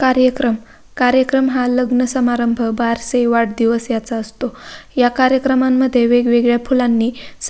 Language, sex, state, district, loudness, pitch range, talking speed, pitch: Marathi, female, Maharashtra, Pune, -16 LUFS, 235-255 Hz, 95 wpm, 245 Hz